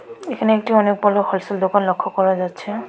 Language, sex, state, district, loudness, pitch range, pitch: Bengali, female, West Bengal, Alipurduar, -18 LUFS, 190-220 Hz, 205 Hz